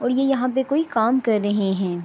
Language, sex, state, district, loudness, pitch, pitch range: Urdu, female, Andhra Pradesh, Anantapur, -21 LUFS, 240 Hz, 205-265 Hz